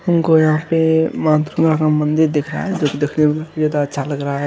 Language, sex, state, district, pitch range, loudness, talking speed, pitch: Hindi, male, Bihar, Supaul, 150-160 Hz, -16 LUFS, 255 wpm, 155 Hz